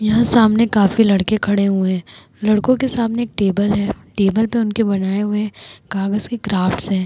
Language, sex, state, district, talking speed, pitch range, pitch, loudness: Hindi, female, Bihar, Vaishali, 180 wpm, 195-225 Hz, 210 Hz, -17 LUFS